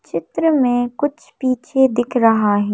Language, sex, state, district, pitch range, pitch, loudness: Hindi, female, Madhya Pradesh, Bhopal, 230-280 Hz, 245 Hz, -17 LUFS